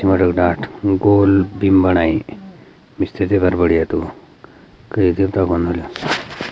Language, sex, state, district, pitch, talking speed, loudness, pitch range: Garhwali, male, Uttarakhand, Uttarkashi, 95 Hz, 120 wpm, -16 LUFS, 85-100 Hz